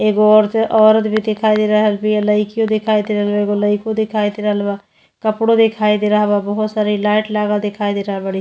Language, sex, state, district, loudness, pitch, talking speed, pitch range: Bhojpuri, female, Uttar Pradesh, Deoria, -15 LUFS, 210 Hz, 235 wpm, 205-215 Hz